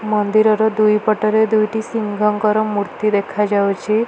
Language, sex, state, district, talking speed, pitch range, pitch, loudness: Odia, female, Odisha, Malkangiri, 90 wpm, 210-215 Hz, 215 Hz, -17 LUFS